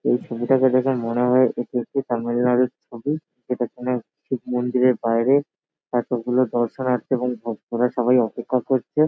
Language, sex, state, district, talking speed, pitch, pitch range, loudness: Bengali, male, West Bengal, Jalpaiguri, 145 wpm, 125 Hz, 120-130 Hz, -22 LUFS